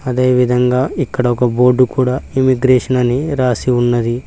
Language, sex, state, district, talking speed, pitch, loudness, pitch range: Telugu, male, Telangana, Mahabubabad, 140 wpm, 125 Hz, -14 LUFS, 125-130 Hz